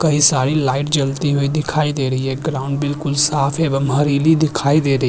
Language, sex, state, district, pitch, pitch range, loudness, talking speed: Hindi, male, Uttarakhand, Tehri Garhwal, 145 Hz, 135-150 Hz, -17 LUFS, 210 wpm